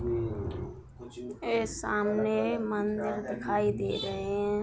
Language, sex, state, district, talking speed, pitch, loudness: Hindi, female, Bihar, Saran, 90 wpm, 205 Hz, -31 LUFS